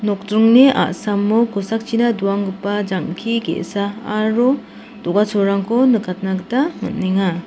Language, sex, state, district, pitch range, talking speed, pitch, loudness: Garo, female, Meghalaya, South Garo Hills, 195-230 Hz, 90 wpm, 205 Hz, -17 LUFS